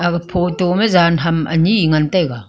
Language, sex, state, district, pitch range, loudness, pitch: Wancho, female, Arunachal Pradesh, Longding, 160-180 Hz, -15 LUFS, 170 Hz